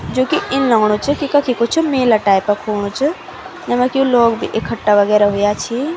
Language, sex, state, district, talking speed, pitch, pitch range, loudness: Garhwali, female, Uttarakhand, Tehri Garhwal, 200 wpm, 235 Hz, 210-270 Hz, -15 LUFS